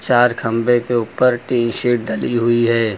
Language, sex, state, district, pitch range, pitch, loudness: Hindi, male, Uttar Pradesh, Lucknow, 115-120 Hz, 120 Hz, -17 LUFS